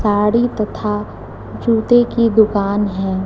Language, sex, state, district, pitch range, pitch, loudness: Hindi, female, Chhattisgarh, Raipur, 205-230 Hz, 215 Hz, -16 LUFS